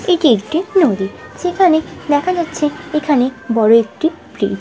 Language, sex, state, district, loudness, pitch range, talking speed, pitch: Bengali, female, West Bengal, Kolkata, -16 LUFS, 230-340 Hz, 145 wpm, 300 Hz